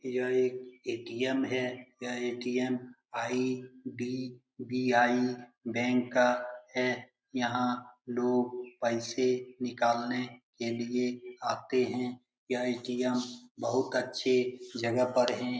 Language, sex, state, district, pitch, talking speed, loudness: Hindi, male, Bihar, Lakhisarai, 125 Hz, 100 wpm, -32 LUFS